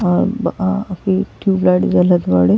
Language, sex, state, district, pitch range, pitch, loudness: Bhojpuri, female, Uttar Pradesh, Ghazipur, 180-195 Hz, 185 Hz, -16 LUFS